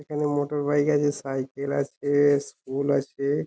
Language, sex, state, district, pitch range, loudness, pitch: Bengali, male, West Bengal, Jhargram, 140-145 Hz, -25 LUFS, 145 Hz